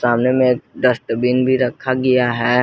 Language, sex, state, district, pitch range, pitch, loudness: Hindi, male, Jharkhand, Garhwa, 120-130 Hz, 125 Hz, -17 LUFS